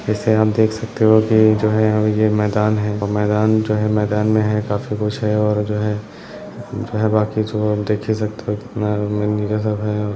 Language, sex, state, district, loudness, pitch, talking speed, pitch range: Hindi, male, Bihar, Jahanabad, -18 LUFS, 105 Hz, 195 wpm, 105-110 Hz